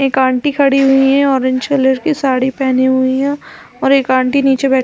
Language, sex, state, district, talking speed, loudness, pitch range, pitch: Hindi, female, Chhattisgarh, Balrampur, 210 wpm, -13 LUFS, 260-275 Hz, 270 Hz